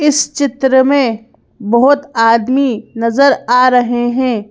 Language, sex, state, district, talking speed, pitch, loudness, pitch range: Hindi, female, Madhya Pradesh, Bhopal, 120 wpm, 255 Hz, -12 LUFS, 230-275 Hz